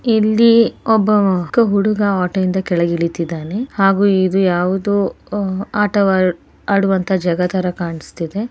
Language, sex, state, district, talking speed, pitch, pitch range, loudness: Kannada, female, Karnataka, Bellary, 100 wpm, 195 Hz, 180-210 Hz, -16 LUFS